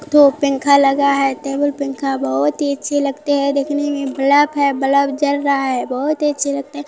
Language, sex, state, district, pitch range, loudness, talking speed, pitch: Maithili, female, Bihar, Supaul, 275-290 Hz, -16 LUFS, 210 wpm, 280 Hz